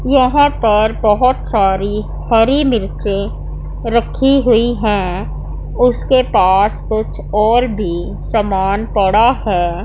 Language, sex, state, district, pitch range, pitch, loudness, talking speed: Hindi, female, Punjab, Pathankot, 200-245 Hz, 215 Hz, -14 LUFS, 105 wpm